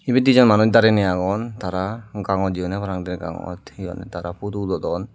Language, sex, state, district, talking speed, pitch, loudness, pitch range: Chakma, male, Tripura, Dhalai, 200 wpm, 95 Hz, -20 LUFS, 90-110 Hz